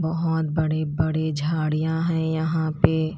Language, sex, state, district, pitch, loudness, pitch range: Hindi, female, Chhattisgarh, Raipur, 160 Hz, -23 LUFS, 155-160 Hz